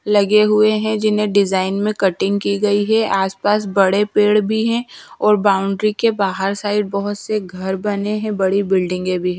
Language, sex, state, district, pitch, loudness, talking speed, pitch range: Hindi, female, Bihar, Patna, 205 Hz, -17 LUFS, 180 wpm, 195-210 Hz